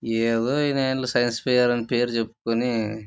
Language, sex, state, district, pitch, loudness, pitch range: Telugu, male, Andhra Pradesh, Chittoor, 120 Hz, -23 LUFS, 115-125 Hz